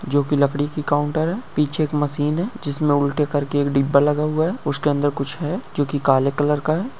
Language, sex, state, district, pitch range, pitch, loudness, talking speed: Hindi, male, Uttar Pradesh, Budaun, 145-155 Hz, 145 Hz, -20 LUFS, 240 wpm